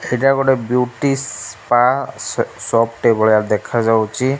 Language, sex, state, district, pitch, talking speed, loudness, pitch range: Odia, male, Odisha, Malkangiri, 125 Hz, 125 wpm, -17 LUFS, 115-135 Hz